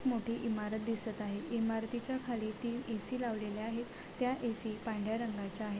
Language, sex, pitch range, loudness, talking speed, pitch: Marathi, female, 215-235 Hz, -37 LUFS, 155 wpm, 225 Hz